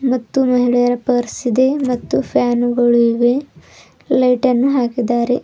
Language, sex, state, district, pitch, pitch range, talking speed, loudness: Kannada, female, Karnataka, Bidar, 245 Hz, 240-260 Hz, 110 wpm, -16 LUFS